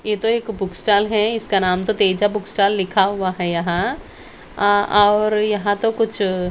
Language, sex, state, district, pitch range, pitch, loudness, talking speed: Hindi, female, Bihar, Patna, 190-215 Hz, 205 Hz, -18 LUFS, 195 wpm